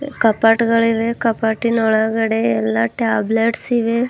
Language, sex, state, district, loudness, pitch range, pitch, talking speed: Kannada, female, Karnataka, Bidar, -17 LUFS, 220-230 Hz, 225 Hz, 90 wpm